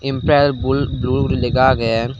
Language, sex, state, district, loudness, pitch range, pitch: Chakma, male, Tripura, Dhalai, -16 LUFS, 125-135 Hz, 130 Hz